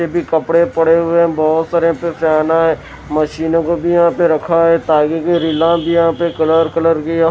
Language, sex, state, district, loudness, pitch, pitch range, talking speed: Hindi, male, Bihar, West Champaran, -14 LUFS, 165 Hz, 160-170 Hz, 220 wpm